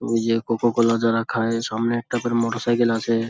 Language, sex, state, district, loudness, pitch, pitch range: Bengali, male, West Bengal, Dakshin Dinajpur, -21 LUFS, 115 Hz, 115-120 Hz